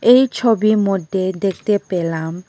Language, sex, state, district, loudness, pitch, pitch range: Bengali, female, Tripura, West Tripura, -17 LUFS, 195 Hz, 180-215 Hz